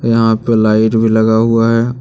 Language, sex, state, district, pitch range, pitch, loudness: Hindi, male, Jharkhand, Deoghar, 110-115 Hz, 115 Hz, -12 LUFS